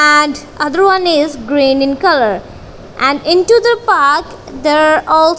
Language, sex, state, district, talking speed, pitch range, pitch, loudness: English, female, Punjab, Kapurthala, 145 wpm, 290-365 Hz, 305 Hz, -12 LUFS